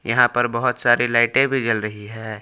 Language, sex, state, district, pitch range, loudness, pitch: Hindi, male, Jharkhand, Palamu, 110-120 Hz, -19 LUFS, 120 Hz